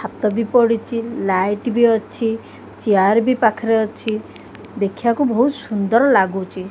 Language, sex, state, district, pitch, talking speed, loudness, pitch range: Odia, female, Odisha, Khordha, 225 Hz, 125 wpm, -18 LUFS, 205-235 Hz